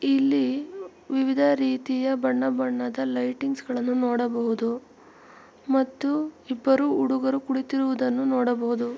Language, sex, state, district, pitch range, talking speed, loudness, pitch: Kannada, female, Karnataka, Mysore, 250-270 Hz, 85 wpm, -25 LUFS, 265 Hz